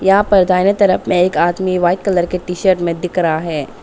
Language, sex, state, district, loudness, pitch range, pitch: Hindi, female, Arunachal Pradesh, Papum Pare, -15 LUFS, 175-190 Hz, 180 Hz